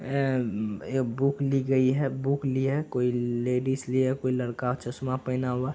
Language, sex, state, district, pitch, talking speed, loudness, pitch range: Hindi, male, Bihar, Araria, 130 Hz, 210 wpm, -27 LUFS, 125-135 Hz